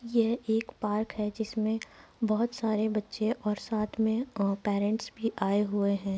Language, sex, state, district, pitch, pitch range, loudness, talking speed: Hindi, female, Uttar Pradesh, Muzaffarnagar, 215 Hz, 210-225 Hz, -30 LUFS, 165 wpm